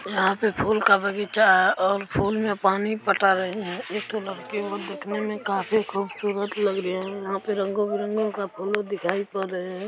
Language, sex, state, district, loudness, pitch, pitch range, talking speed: Hindi, male, Bihar, East Champaran, -24 LUFS, 200 Hz, 195-210 Hz, 205 wpm